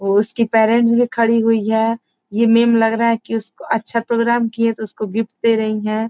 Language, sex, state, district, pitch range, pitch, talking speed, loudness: Hindi, female, Bihar, Gopalganj, 220-230 Hz, 225 Hz, 235 wpm, -17 LUFS